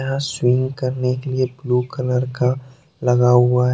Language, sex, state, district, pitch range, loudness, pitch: Hindi, male, Jharkhand, Deoghar, 125-130 Hz, -19 LUFS, 130 Hz